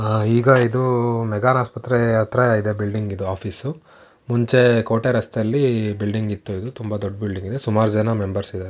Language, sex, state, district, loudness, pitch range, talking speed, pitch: Kannada, male, Karnataka, Shimoga, -20 LUFS, 105-125 Hz, 170 wpm, 110 Hz